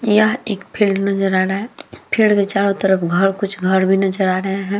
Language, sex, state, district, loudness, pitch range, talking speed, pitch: Hindi, female, Bihar, Vaishali, -17 LUFS, 190-205 Hz, 210 wpm, 195 Hz